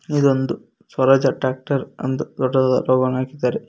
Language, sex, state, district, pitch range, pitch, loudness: Kannada, male, Karnataka, Koppal, 130-135 Hz, 130 Hz, -19 LUFS